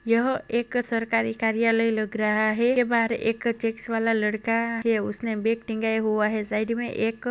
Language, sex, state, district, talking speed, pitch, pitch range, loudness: Hindi, female, Maharashtra, Sindhudurg, 180 wpm, 225 Hz, 220-230 Hz, -25 LUFS